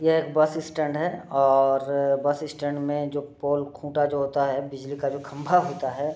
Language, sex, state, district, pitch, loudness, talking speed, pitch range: Hindi, male, Uttar Pradesh, Deoria, 145 Hz, -25 LUFS, 205 wpm, 140-155 Hz